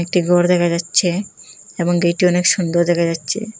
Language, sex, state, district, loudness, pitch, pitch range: Bengali, female, Assam, Hailakandi, -17 LUFS, 175 Hz, 170-180 Hz